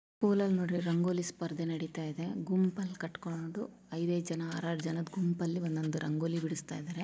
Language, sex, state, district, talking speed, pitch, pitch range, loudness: Kannada, female, Karnataka, Chamarajanagar, 145 wpm, 170 Hz, 165-180 Hz, -35 LUFS